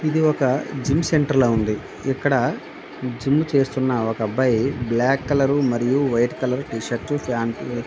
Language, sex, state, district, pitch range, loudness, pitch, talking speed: Telugu, male, Andhra Pradesh, Visakhapatnam, 120-140 Hz, -21 LUFS, 130 Hz, 145 wpm